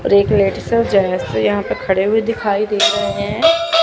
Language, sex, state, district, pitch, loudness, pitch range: Hindi, female, Chandigarh, Chandigarh, 200 Hz, -16 LUFS, 185-230 Hz